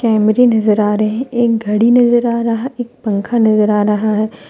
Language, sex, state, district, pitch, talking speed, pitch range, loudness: Hindi, female, Jharkhand, Deoghar, 225 Hz, 200 wpm, 210-240 Hz, -14 LUFS